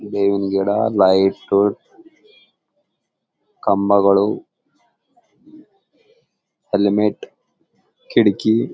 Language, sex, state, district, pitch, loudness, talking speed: Kannada, male, Karnataka, Gulbarga, 105 Hz, -17 LUFS, 40 wpm